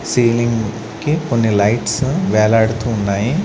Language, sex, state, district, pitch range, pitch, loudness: Telugu, male, Andhra Pradesh, Sri Satya Sai, 110-120 Hz, 115 Hz, -16 LUFS